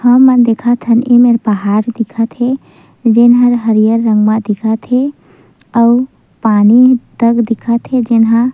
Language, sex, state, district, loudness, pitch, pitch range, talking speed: Chhattisgarhi, female, Chhattisgarh, Sukma, -11 LUFS, 235 Hz, 225-245 Hz, 145 wpm